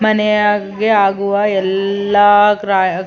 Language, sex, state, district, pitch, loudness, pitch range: Kannada, female, Karnataka, Chamarajanagar, 205 Hz, -13 LUFS, 195-210 Hz